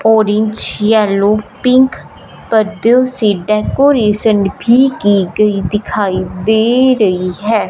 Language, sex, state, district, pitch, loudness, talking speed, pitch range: Hindi, female, Punjab, Fazilka, 215 Hz, -12 LUFS, 100 wpm, 205-230 Hz